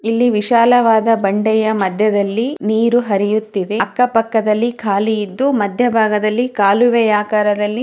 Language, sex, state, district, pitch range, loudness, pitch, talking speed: Kannada, female, Karnataka, Chamarajanagar, 210-235 Hz, -15 LUFS, 220 Hz, 105 wpm